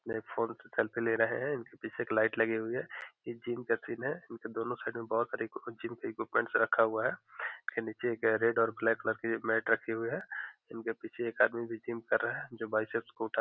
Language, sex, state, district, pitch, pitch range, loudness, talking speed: Hindi, male, Bihar, Gopalganj, 115 Hz, 110-115 Hz, -34 LUFS, 235 wpm